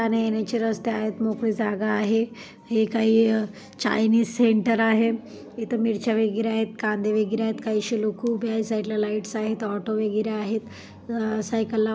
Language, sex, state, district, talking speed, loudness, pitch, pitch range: Marathi, female, Maharashtra, Chandrapur, 165 wpm, -24 LUFS, 220 Hz, 215-225 Hz